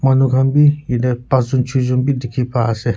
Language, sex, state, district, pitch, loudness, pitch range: Nagamese, male, Nagaland, Kohima, 130 Hz, -16 LUFS, 125-135 Hz